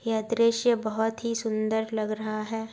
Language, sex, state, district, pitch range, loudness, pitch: Hindi, female, Bihar, Darbhanga, 215-230 Hz, -27 LUFS, 220 Hz